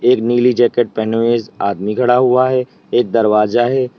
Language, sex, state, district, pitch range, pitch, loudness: Hindi, male, Uttar Pradesh, Lalitpur, 115-125 Hz, 120 Hz, -14 LUFS